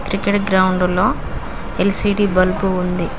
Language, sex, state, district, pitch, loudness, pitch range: Telugu, female, Telangana, Mahabubabad, 185 Hz, -17 LUFS, 175-195 Hz